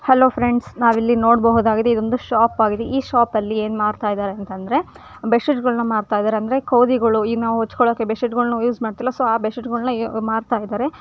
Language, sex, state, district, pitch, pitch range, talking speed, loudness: Kannada, female, Karnataka, Dharwad, 230 Hz, 220-245 Hz, 225 wpm, -19 LUFS